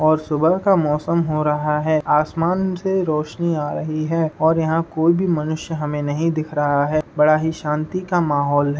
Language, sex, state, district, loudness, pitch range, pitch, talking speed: Hindi, male, Uttar Pradesh, Budaun, -19 LUFS, 150-165 Hz, 155 Hz, 200 wpm